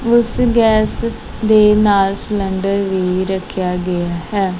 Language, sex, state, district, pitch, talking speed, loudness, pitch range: Punjabi, female, Punjab, Kapurthala, 200 Hz, 115 wpm, -16 LUFS, 185-215 Hz